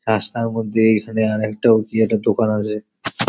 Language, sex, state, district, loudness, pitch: Bengali, male, West Bengal, Paschim Medinipur, -18 LUFS, 110 Hz